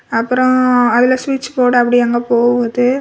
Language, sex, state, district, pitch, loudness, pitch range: Tamil, female, Tamil Nadu, Kanyakumari, 245 Hz, -13 LUFS, 240-255 Hz